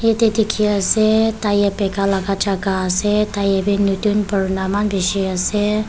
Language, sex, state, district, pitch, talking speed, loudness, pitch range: Nagamese, female, Nagaland, Kohima, 200 Hz, 155 wpm, -18 LUFS, 195-210 Hz